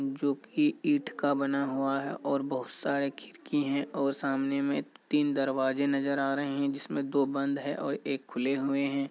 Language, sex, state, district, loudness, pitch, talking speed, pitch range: Hindi, male, Bihar, Kishanganj, -30 LUFS, 140 Hz, 195 wpm, 135-140 Hz